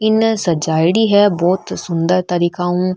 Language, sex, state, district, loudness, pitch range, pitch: Marwari, female, Rajasthan, Nagaur, -15 LUFS, 170-205 Hz, 180 Hz